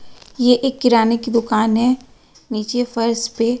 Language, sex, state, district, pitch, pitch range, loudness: Hindi, female, Bihar, West Champaran, 235 Hz, 230-245 Hz, -18 LUFS